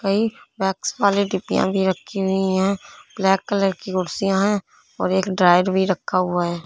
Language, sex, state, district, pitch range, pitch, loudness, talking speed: Hindi, female, Punjab, Fazilka, 185-200 Hz, 190 Hz, -21 LUFS, 180 wpm